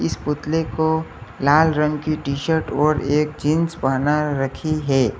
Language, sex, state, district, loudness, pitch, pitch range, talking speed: Hindi, male, Uttar Pradesh, Lalitpur, -20 LUFS, 150 Hz, 140-155 Hz, 150 wpm